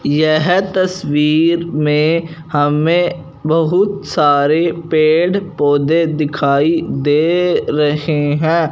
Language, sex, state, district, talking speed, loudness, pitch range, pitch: Hindi, male, Punjab, Fazilka, 85 wpm, -14 LUFS, 150-170 Hz, 155 Hz